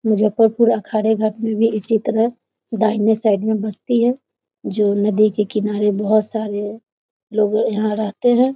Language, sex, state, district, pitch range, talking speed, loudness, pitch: Maithili, female, Bihar, Muzaffarpur, 210-225 Hz, 155 wpm, -18 LUFS, 215 Hz